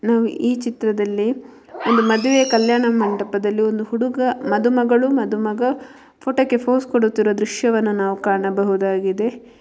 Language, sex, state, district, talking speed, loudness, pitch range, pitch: Kannada, female, Karnataka, Mysore, 105 wpm, -19 LUFS, 210-250 Hz, 230 Hz